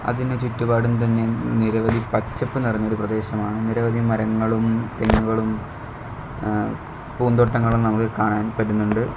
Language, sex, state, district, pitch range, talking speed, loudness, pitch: Malayalam, male, Kerala, Kollam, 110-120 Hz, 105 wpm, -21 LUFS, 115 Hz